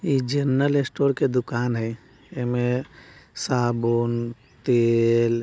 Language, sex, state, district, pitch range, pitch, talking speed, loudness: Bajjika, male, Bihar, Vaishali, 115-135 Hz, 120 Hz, 120 wpm, -23 LUFS